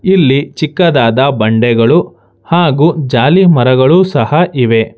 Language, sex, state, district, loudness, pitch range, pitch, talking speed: Kannada, male, Karnataka, Bangalore, -10 LUFS, 120-170 Hz, 140 Hz, 95 wpm